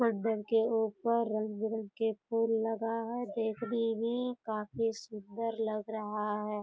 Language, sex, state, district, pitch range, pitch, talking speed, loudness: Hindi, female, Bihar, Purnia, 215-230 Hz, 225 Hz, 135 wpm, -34 LUFS